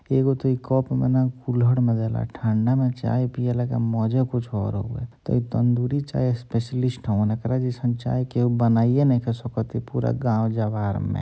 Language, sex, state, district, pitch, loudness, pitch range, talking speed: Bhojpuri, male, Bihar, Gopalganj, 120 Hz, -23 LUFS, 115-125 Hz, 195 wpm